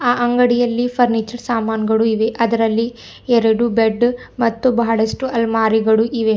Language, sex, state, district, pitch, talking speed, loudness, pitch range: Kannada, female, Karnataka, Bidar, 230 Hz, 115 wpm, -17 LUFS, 225-240 Hz